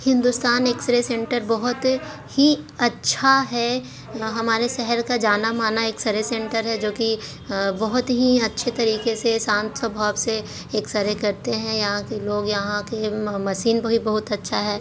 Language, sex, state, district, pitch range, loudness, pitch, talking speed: Hindi, female, Bihar, Jahanabad, 210-240 Hz, -22 LUFS, 225 Hz, 160 wpm